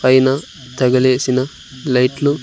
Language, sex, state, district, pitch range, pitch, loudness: Telugu, male, Andhra Pradesh, Sri Satya Sai, 130-135 Hz, 130 Hz, -16 LUFS